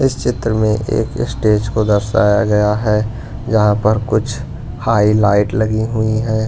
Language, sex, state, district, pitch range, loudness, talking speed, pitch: Hindi, male, Punjab, Pathankot, 105-115 Hz, -15 LUFS, 150 wpm, 110 Hz